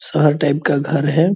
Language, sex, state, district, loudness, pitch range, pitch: Hindi, male, Bihar, Purnia, -16 LUFS, 145-160 Hz, 150 Hz